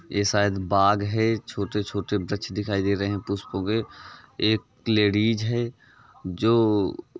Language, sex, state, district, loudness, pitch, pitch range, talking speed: Hindi, male, Uttar Pradesh, Varanasi, -24 LUFS, 105 Hz, 100-110 Hz, 140 wpm